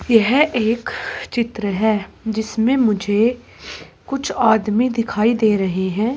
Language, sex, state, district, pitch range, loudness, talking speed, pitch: Hindi, female, Uttar Pradesh, Saharanpur, 210-240 Hz, -18 LUFS, 115 wpm, 225 Hz